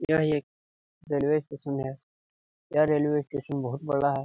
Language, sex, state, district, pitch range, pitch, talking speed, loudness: Hindi, male, Bihar, Jamui, 135-150 Hz, 140 Hz, 155 wpm, -28 LUFS